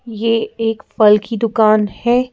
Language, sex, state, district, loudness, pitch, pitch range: Hindi, female, Madhya Pradesh, Bhopal, -15 LUFS, 225 Hz, 215-230 Hz